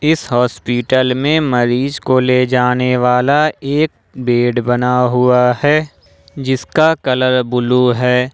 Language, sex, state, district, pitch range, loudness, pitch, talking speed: Hindi, male, Jharkhand, Ranchi, 125-135 Hz, -14 LUFS, 125 Hz, 130 wpm